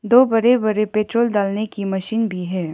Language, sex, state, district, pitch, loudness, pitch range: Hindi, female, Arunachal Pradesh, Lower Dibang Valley, 215 Hz, -19 LUFS, 195-225 Hz